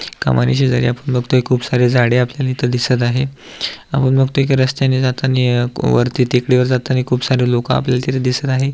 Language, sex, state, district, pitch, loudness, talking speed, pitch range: Marathi, male, Maharashtra, Aurangabad, 125 Hz, -16 LUFS, 185 wpm, 125-130 Hz